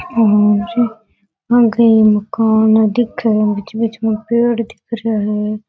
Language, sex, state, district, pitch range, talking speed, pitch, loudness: Rajasthani, female, Rajasthan, Nagaur, 210-230 Hz, 55 wpm, 220 Hz, -14 LUFS